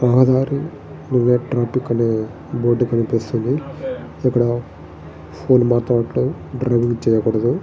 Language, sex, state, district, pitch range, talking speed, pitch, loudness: Telugu, male, Andhra Pradesh, Srikakulam, 115-125 Hz, 55 wpm, 120 Hz, -19 LUFS